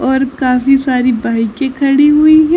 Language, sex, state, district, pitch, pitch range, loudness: Hindi, female, Haryana, Charkhi Dadri, 270 Hz, 250-285 Hz, -11 LUFS